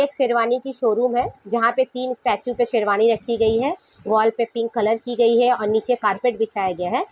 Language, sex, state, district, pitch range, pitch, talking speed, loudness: Hindi, female, Jharkhand, Sahebganj, 220-250 Hz, 235 Hz, 230 wpm, -20 LUFS